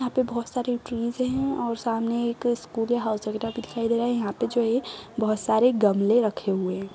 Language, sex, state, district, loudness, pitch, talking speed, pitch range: Hindi, female, Uttar Pradesh, Ghazipur, -25 LUFS, 235 Hz, 215 wpm, 220-240 Hz